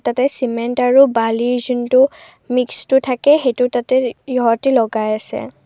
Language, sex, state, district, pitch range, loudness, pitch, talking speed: Assamese, female, Assam, Kamrup Metropolitan, 240-260 Hz, -15 LUFS, 250 Hz, 125 wpm